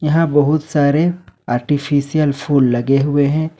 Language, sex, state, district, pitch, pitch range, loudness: Hindi, male, Jharkhand, Ranchi, 145 Hz, 140-155 Hz, -16 LUFS